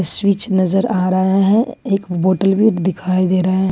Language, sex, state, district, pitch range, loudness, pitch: Hindi, female, Jharkhand, Ranchi, 185-200 Hz, -15 LUFS, 190 Hz